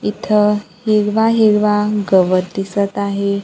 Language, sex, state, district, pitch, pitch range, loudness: Marathi, female, Maharashtra, Gondia, 205 Hz, 195-210 Hz, -15 LUFS